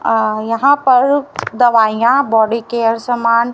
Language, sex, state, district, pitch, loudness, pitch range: Hindi, female, Haryana, Rohtak, 230 Hz, -13 LUFS, 225-250 Hz